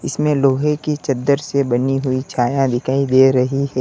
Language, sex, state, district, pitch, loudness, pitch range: Hindi, male, Uttar Pradesh, Lalitpur, 135 Hz, -17 LUFS, 130-140 Hz